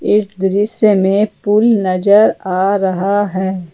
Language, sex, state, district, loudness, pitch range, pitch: Hindi, female, Jharkhand, Ranchi, -14 LUFS, 190-210 Hz, 200 Hz